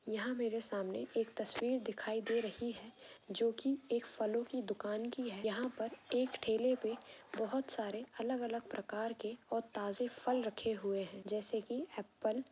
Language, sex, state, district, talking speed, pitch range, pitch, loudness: Hindi, female, Jharkhand, Jamtara, 180 wpm, 215-245 Hz, 230 Hz, -39 LUFS